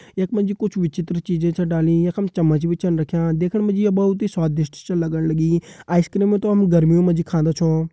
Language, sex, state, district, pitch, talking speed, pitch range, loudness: Hindi, male, Uttarakhand, Tehri Garhwal, 175 Hz, 210 wpm, 165-195 Hz, -19 LUFS